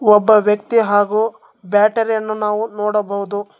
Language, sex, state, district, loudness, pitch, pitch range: Kannada, male, Karnataka, Bangalore, -16 LUFS, 210 Hz, 205-220 Hz